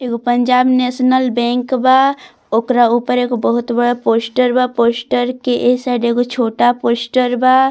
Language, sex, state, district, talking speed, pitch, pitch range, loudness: Bhojpuri, female, Bihar, Muzaffarpur, 155 wpm, 245 Hz, 240-255 Hz, -14 LUFS